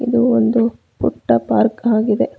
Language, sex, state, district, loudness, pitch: Kannada, female, Karnataka, Bangalore, -16 LUFS, 220 Hz